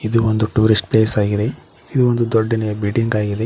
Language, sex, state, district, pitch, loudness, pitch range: Kannada, male, Karnataka, Koppal, 110 Hz, -17 LUFS, 105-115 Hz